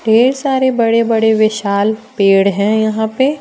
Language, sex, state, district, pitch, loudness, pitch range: Hindi, female, Jharkhand, Deoghar, 220 Hz, -13 LUFS, 215-240 Hz